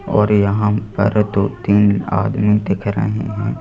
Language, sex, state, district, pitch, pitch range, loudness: Hindi, male, Madhya Pradesh, Bhopal, 105 Hz, 100-105 Hz, -17 LUFS